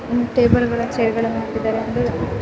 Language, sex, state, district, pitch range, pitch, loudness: Kannada, female, Karnataka, Bellary, 230-245 Hz, 240 Hz, -19 LUFS